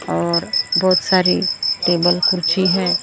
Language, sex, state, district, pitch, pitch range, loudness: Hindi, male, Maharashtra, Gondia, 180 Hz, 175-185 Hz, -16 LUFS